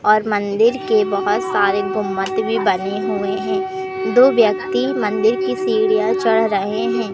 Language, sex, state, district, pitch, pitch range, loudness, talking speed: Hindi, male, Madhya Pradesh, Katni, 195 Hz, 190-220 Hz, -17 LUFS, 150 wpm